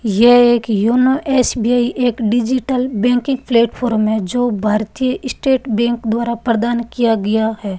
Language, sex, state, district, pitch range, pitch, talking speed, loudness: Hindi, female, Rajasthan, Bikaner, 220-250 Hz, 235 Hz, 140 wpm, -15 LUFS